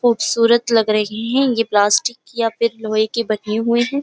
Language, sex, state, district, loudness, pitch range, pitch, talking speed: Hindi, female, Uttar Pradesh, Jyotiba Phule Nagar, -17 LUFS, 215-235 Hz, 230 Hz, 195 wpm